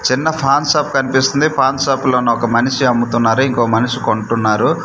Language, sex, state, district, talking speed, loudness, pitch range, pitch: Telugu, male, Andhra Pradesh, Manyam, 160 wpm, -14 LUFS, 120-135 Hz, 130 Hz